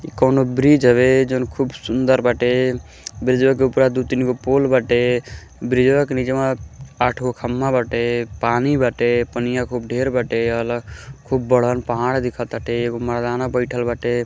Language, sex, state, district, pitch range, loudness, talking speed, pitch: Bhojpuri, male, Uttar Pradesh, Gorakhpur, 120-130 Hz, -19 LUFS, 155 wpm, 125 Hz